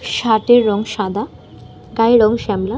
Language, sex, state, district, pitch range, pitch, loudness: Bengali, female, West Bengal, North 24 Parganas, 210-235 Hz, 225 Hz, -15 LUFS